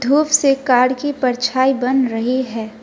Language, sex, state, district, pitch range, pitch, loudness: Hindi, female, West Bengal, Alipurduar, 245-270 Hz, 255 Hz, -16 LUFS